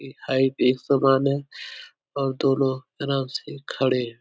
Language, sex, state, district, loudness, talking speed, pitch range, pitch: Hindi, male, Uttar Pradesh, Etah, -23 LUFS, 170 wpm, 130-140 Hz, 135 Hz